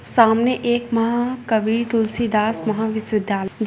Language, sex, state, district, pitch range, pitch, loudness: Hindi, female, Chhattisgarh, Balrampur, 215-235 Hz, 225 Hz, -20 LUFS